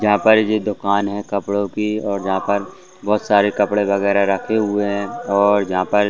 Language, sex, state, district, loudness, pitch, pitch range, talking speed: Hindi, male, Chhattisgarh, Bastar, -18 LUFS, 100 Hz, 100-105 Hz, 195 wpm